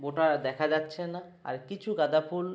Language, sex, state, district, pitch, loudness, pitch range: Bengali, male, West Bengal, Jalpaiguri, 160 Hz, -30 LUFS, 155-180 Hz